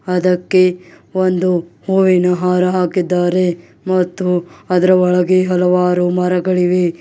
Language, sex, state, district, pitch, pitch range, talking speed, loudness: Kannada, male, Karnataka, Bidar, 180 Hz, 180-185 Hz, 85 wpm, -15 LUFS